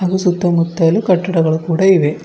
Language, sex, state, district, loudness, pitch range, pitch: Kannada, female, Karnataka, Bidar, -14 LUFS, 165-185 Hz, 175 Hz